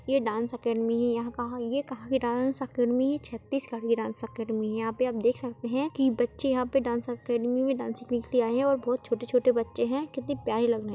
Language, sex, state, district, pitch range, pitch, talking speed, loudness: Hindi, female, Chhattisgarh, Jashpur, 235-265 Hz, 245 Hz, 250 wpm, -29 LUFS